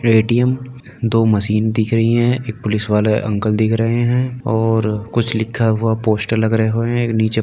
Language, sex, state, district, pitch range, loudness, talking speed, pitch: Hindi, male, Uttar Pradesh, Jalaun, 110-120 Hz, -17 LUFS, 200 wpm, 110 Hz